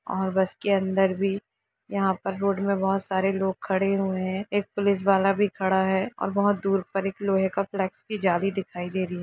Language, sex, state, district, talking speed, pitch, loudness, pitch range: Hindi, female, Jharkhand, Sahebganj, 220 wpm, 195 Hz, -25 LUFS, 190-195 Hz